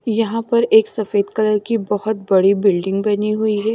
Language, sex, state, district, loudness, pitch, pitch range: Hindi, female, Himachal Pradesh, Shimla, -17 LUFS, 215 Hz, 205-220 Hz